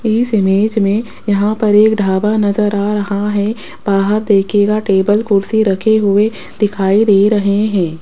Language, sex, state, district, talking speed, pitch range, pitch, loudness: Hindi, female, Rajasthan, Jaipur, 155 wpm, 200-215 Hz, 205 Hz, -13 LUFS